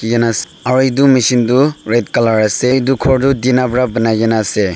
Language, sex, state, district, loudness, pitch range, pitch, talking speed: Nagamese, male, Nagaland, Dimapur, -13 LUFS, 115-130 Hz, 125 Hz, 190 wpm